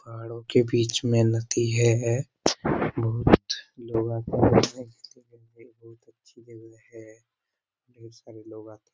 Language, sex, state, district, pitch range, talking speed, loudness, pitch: Hindi, male, Bihar, Lakhisarai, 115-120 Hz, 120 wpm, -24 LUFS, 115 Hz